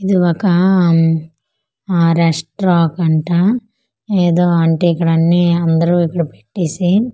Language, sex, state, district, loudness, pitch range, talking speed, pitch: Telugu, female, Andhra Pradesh, Manyam, -14 LUFS, 165-185 Hz, 110 wpm, 175 Hz